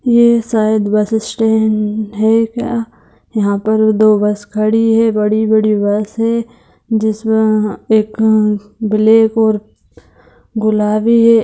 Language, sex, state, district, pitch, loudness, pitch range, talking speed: Hindi, female, Bihar, Saharsa, 220 Hz, -13 LUFS, 215-225 Hz, 110 wpm